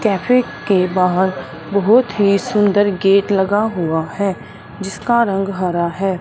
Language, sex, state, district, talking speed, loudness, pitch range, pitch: Hindi, male, Punjab, Fazilka, 135 wpm, -16 LUFS, 180-205 Hz, 195 Hz